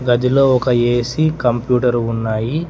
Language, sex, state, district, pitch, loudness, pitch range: Telugu, male, Telangana, Hyderabad, 125 Hz, -16 LUFS, 120-130 Hz